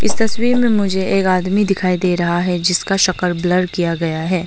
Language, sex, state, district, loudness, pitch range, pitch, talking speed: Hindi, female, Arunachal Pradesh, Longding, -16 LUFS, 175-195 Hz, 185 Hz, 200 wpm